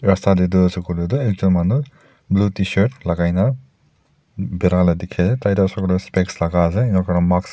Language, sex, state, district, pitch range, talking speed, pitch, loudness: Nagamese, male, Nagaland, Dimapur, 90-100 Hz, 160 wpm, 95 Hz, -18 LUFS